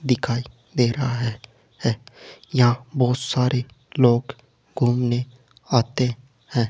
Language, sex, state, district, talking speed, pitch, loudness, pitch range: Hindi, male, Rajasthan, Jaipur, 100 wpm, 125 Hz, -22 LUFS, 120-125 Hz